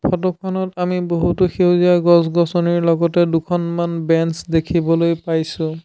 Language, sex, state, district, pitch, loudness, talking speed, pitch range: Assamese, male, Assam, Sonitpur, 170 Hz, -17 LUFS, 100 wpm, 165-175 Hz